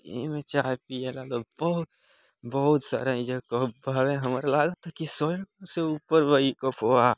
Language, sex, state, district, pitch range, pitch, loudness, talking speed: Bhojpuri, male, Bihar, Gopalganj, 130-155 Hz, 140 Hz, -27 LUFS, 185 wpm